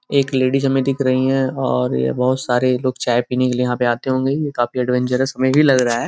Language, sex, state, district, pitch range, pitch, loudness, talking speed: Hindi, male, Uttar Pradesh, Gorakhpur, 125-135 Hz, 130 Hz, -18 LUFS, 275 wpm